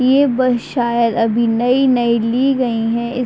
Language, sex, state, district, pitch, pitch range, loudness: Hindi, female, Uttar Pradesh, Deoria, 240 Hz, 235-255 Hz, -15 LUFS